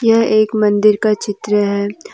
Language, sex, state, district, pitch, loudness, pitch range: Hindi, female, Jharkhand, Deoghar, 210 Hz, -14 LUFS, 205-215 Hz